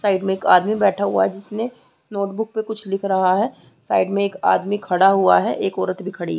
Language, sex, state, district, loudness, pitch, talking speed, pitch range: Hindi, female, Chhattisgarh, Rajnandgaon, -19 LUFS, 200 Hz, 245 wpm, 190-215 Hz